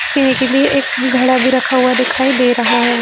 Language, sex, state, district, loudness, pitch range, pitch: Hindi, female, Chhattisgarh, Bilaspur, -13 LUFS, 255-265 Hz, 255 Hz